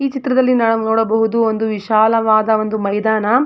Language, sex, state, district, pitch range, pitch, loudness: Kannada, female, Karnataka, Mysore, 220-230 Hz, 220 Hz, -15 LUFS